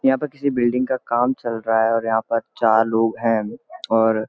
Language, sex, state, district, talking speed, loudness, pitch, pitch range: Hindi, male, Uttarakhand, Uttarkashi, 235 wpm, -20 LUFS, 115 Hz, 110-130 Hz